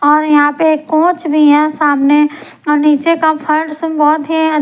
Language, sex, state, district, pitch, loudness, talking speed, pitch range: Hindi, female, Punjab, Pathankot, 305 Hz, -12 LUFS, 170 wpm, 295-315 Hz